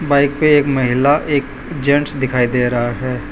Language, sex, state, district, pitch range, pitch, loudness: Hindi, male, Gujarat, Valsad, 125-145 Hz, 140 Hz, -15 LUFS